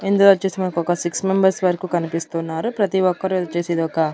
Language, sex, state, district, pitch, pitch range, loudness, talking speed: Telugu, female, Andhra Pradesh, Annamaya, 180 Hz, 170-190 Hz, -20 LUFS, 145 wpm